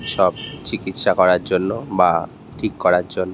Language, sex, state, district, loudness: Bengali, male, West Bengal, North 24 Parganas, -19 LUFS